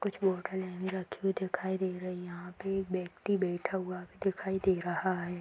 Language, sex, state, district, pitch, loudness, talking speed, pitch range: Hindi, female, Uttar Pradesh, Budaun, 185 Hz, -34 LUFS, 210 wpm, 180-190 Hz